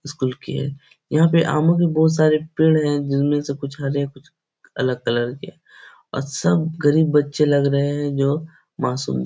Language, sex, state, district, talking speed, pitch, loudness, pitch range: Hindi, male, Bihar, Supaul, 190 wpm, 145 Hz, -20 LUFS, 140-155 Hz